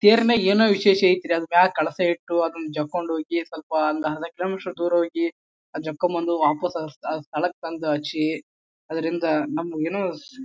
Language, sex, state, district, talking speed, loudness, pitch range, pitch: Kannada, male, Karnataka, Bijapur, 160 wpm, -23 LUFS, 155-180 Hz, 170 Hz